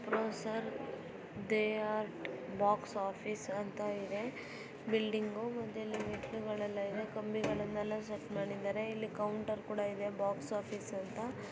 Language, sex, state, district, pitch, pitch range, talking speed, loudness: Kannada, female, Karnataka, Bijapur, 210 Hz, 205-220 Hz, 105 wpm, -39 LUFS